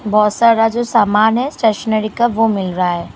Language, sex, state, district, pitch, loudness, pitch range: Hindi, female, Punjab, Pathankot, 220 Hz, -14 LUFS, 210-230 Hz